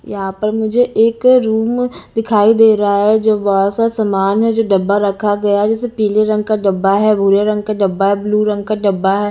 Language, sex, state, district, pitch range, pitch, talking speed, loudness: Hindi, female, Punjab, Pathankot, 200-220 Hz, 210 Hz, 225 wpm, -14 LUFS